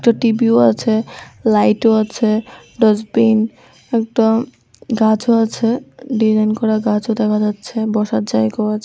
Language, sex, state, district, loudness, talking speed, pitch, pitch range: Bengali, female, Tripura, West Tripura, -16 LUFS, 115 wpm, 220 Hz, 215-230 Hz